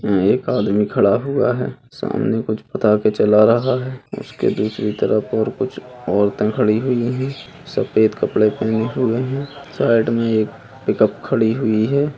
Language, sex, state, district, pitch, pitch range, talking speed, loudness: Hindi, male, Bihar, Jahanabad, 115 Hz, 110-130 Hz, 160 wpm, -18 LUFS